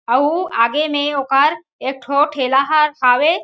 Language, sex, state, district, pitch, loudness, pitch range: Chhattisgarhi, female, Chhattisgarh, Jashpur, 290 Hz, -16 LUFS, 265-305 Hz